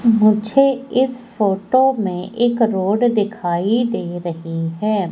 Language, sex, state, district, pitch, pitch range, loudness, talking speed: Hindi, female, Madhya Pradesh, Katni, 215 Hz, 185-240 Hz, -18 LUFS, 115 wpm